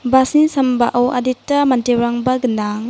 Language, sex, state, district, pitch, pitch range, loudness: Garo, female, Meghalaya, West Garo Hills, 250 Hz, 240-260 Hz, -16 LUFS